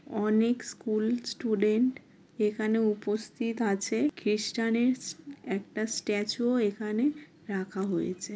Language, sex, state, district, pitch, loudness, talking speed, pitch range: Bengali, female, West Bengal, Kolkata, 215 Hz, -30 LUFS, 95 wpm, 210-235 Hz